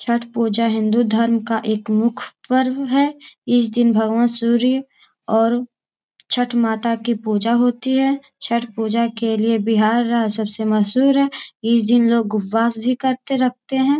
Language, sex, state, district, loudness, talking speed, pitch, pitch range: Hindi, female, Bihar, Jamui, -18 LUFS, 160 wpm, 235 Hz, 225-255 Hz